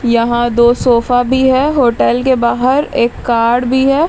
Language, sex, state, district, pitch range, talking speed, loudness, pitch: Hindi, female, Bihar, Patna, 235-260 Hz, 175 wpm, -12 LUFS, 245 Hz